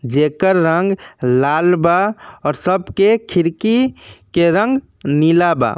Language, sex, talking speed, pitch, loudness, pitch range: Bhojpuri, male, 115 wpm, 175 Hz, -15 LUFS, 150-195 Hz